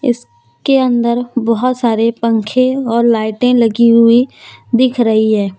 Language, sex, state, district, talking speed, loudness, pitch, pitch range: Hindi, female, Jharkhand, Deoghar, 130 wpm, -13 LUFS, 235 Hz, 225-250 Hz